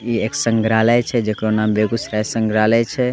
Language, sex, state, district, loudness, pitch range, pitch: Angika, male, Bihar, Begusarai, -17 LUFS, 110-115 Hz, 110 Hz